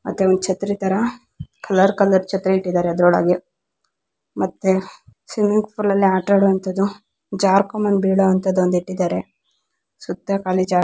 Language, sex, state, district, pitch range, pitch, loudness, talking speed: Kannada, female, Karnataka, Raichur, 185-200 Hz, 190 Hz, -19 LUFS, 125 wpm